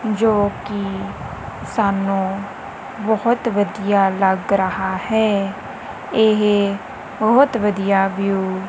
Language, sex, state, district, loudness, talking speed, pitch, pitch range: Punjabi, female, Punjab, Kapurthala, -18 LUFS, 90 wpm, 200 Hz, 195-215 Hz